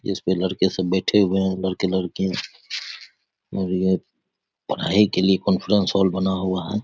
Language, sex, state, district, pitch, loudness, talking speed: Hindi, male, Bihar, Saharsa, 95 Hz, -22 LUFS, 140 wpm